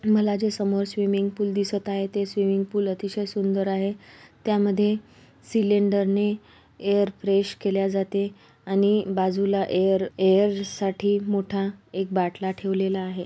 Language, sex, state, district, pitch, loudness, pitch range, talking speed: Marathi, female, Maharashtra, Solapur, 200 Hz, -24 LUFS, 195-205 Hz, 125 wpm